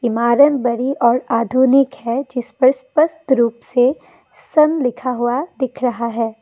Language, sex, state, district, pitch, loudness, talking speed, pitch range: Hindi, female, Assam, Kamrup Metropolitan, 255 Hz, -17 LUFS, 150 wpm, 235-270 Hz